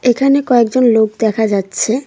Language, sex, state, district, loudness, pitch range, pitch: Bengali, female, West Bengal, Cooch Behar, -13 LUFS, 220-255 Hz, 235 Hz